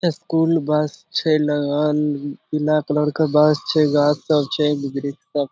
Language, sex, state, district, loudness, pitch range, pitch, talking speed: Maithili, male, Bihar, Supaul, -19 LUFS, 145-155 Hz, 150 Hz, 150 wpm